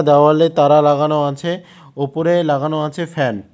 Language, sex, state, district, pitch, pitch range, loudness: Bengali, male, West Bengal, Cooch Behar, 150 Hz, 145-165 Hz, -16 LUFS